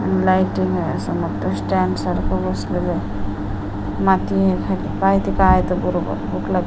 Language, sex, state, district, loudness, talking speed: Marathi, female, Maharashtra, Washim, -20 LUFS, 135 wpm